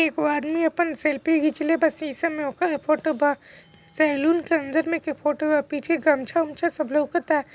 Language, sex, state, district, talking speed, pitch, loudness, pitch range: Bhojpuri, female, Bihar, East Champaran, 175 wpm, 310 Hz, -23 LUFS, 295-325 Hz